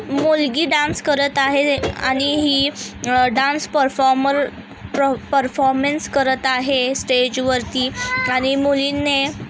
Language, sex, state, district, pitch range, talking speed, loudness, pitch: Marathi, female, Maharashtra, Aurangabad, 260-285 Hz, 95 wpm, -18 LUFS, 275 Hz